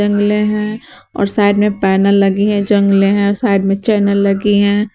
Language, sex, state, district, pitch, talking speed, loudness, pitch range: Hindi, female, Uttar Pradesh, Shamli, 205 Hz, 170 wpm, -13 LUFS, 200-210 Hz